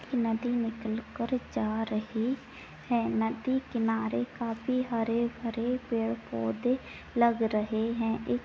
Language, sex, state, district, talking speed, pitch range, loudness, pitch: Hindi, female, Bihar, Jahanabad, 115 wpm, 220-245 Hz, -31 LUFS, 230 Hz